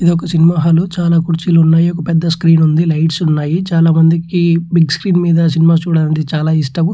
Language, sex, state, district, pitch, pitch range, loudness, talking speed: Telugu, male, Andhra Pradesh, Chittoor, 165 Hz, 160-170 Hz, -12 LUFS, 175 wpm